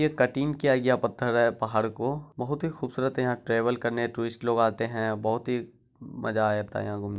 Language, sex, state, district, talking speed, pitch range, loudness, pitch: Hindi, male, Bihar, Araria, 235 wpm, 110-130 Hz, -27 LUFS, 120 Hz